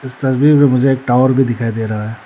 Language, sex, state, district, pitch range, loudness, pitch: Hindi, male, Arunachal Pradesh, Lower Dibang Valley, 115-135 Hz, -13 LUFS, 130 Hz